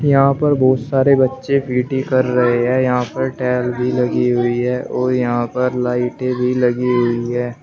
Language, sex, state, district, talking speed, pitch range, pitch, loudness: Hindi, male, Uttar Pradesh, Shamli, 190 wpm, 125-130 Hz, 125 Hz, -17 LUFS